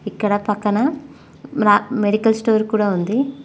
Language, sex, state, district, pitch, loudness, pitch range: Telugu, female, Telangana, Mahabubabad, 215 Hz, -18 LUFS, 205-260 Hz